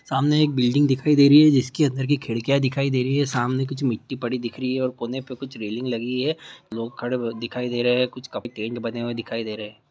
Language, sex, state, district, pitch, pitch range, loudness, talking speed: Hindi, male, Chhattisgarh, Bastar, 125 Hz, 120-135 Hz, -23 LUFS, 260 wpm